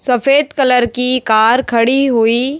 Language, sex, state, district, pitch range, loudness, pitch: Hindi, female, Chhattisgarh, Raipur, 235-270 Hz, -11 LUFS, 250 Hz